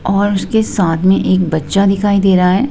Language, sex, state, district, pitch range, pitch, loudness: Hindi, female, Himachal Pradesh, Shimla, 185-205 Hz, 195 Hz, -13 LUFS